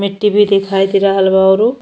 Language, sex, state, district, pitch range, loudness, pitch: Bhojpuri, female, Uttar Pradesh, Ghazipur, 195-210 Hz, -12 LUFS, 195 Hz